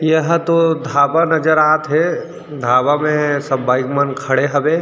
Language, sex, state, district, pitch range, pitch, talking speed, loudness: Chhattisgarhi, male, Chhattisgarh, Rajnandgaon, 140-160 Hz, 155 Hz, 150 wpm, -15 LUFS